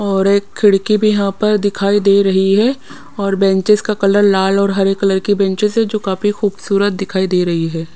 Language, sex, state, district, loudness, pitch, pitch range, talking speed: Hindi, female, Punjab, Pathankot, -14 LUFS, 200 Hz, 195-205 Hz, 210 wpm